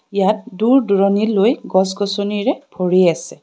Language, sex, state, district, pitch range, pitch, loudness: Assamese, female, Assam, Kamrup Metropolitan, 190-215 Hz, 200 Hz, -16 LUFS